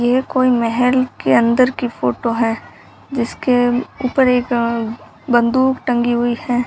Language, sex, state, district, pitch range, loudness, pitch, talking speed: Hindi, female, Rajasthan, Bikaner, 235-255 Hz, -17 LUFS, 245 Hz, 135 wpm